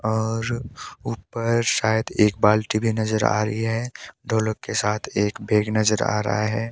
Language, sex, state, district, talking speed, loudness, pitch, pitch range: Hindi, male, Himachal Pradesh, Shimla, 180 wpm, -22 LUFS, 110 Hz, 105-115 Hz